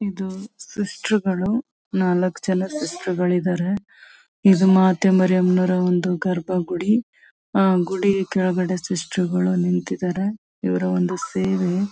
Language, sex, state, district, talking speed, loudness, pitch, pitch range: Kannada, female, Karnataka, Chamarajanagar, 105 wpm, -21 LUFS, 185 Hz, 180-195 Hz